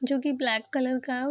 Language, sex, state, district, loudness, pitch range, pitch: Hindi, female, Bihar, Saharsa, -27 LUFS, 250-275 Hz, 255 Hz